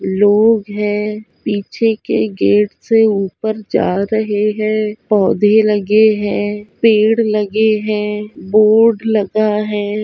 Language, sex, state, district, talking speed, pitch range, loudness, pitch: Hindi, female, Bihar, Kishanganj, 115 wpm, 205-220 Hz, -14 LUFS, 210 Hz